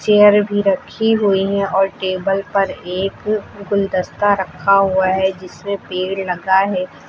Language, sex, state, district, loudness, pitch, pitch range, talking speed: Hindi, female, Uttar Pradesh, Lucknow, -17 LUFS, 195 Hz, 185-200 Hz, 145 wpm